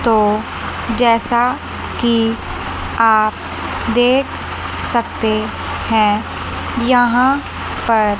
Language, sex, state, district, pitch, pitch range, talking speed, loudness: Hindi, female, Chandigarh, Chandigarh, 230 Hz, 220-240 Hz, 65 wpm, -17 LUFS